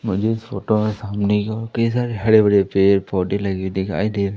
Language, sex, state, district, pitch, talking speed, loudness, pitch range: Hindi, male, Madhya Pradesh, Umaria, 105 Hz, 235 wpm, -19 LUFS, 100-110 Hz